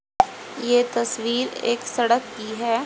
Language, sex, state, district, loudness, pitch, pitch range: Hindi, female, Haryana, Rohtak, -23 LUFS, 235 Hz, 235-245 Hz